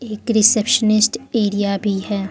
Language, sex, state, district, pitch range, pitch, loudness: Hindi, female, Arunachal Pradesh, Lower Dibang Valley, 205-225 Hz, 215 Hz, -16 LUFS